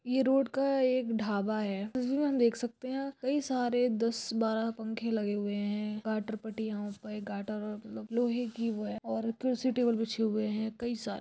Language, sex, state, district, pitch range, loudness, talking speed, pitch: Hindi, female, Chhattisgarh, Sukma, 210-245 Hz, -32 LUFS, 205 wpm, 225 Hz